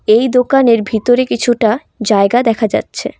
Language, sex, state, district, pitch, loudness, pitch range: Bengali, female, West Bengal, Cooch Behar, 230 Hz, -13 LUFS, 220-250 Hz